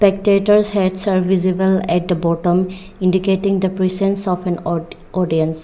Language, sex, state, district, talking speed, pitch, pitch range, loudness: English, female, Arunachal Pradesh, Lower Dibang Valley, 150 wpm, 185 Hz, 180-195 Hz, -17 LUFS